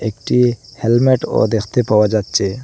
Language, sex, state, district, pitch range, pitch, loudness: Bengali, male, Assam, Hailakandi, 110-125 Hz, 115 Hz, -16 LUFS